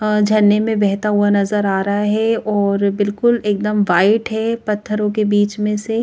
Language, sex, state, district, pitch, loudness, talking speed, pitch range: Hindi, female, Madhya Pradesh, Bhopal, 210 Hz, -16 LUFS, 180 wpm, 205-215 Hz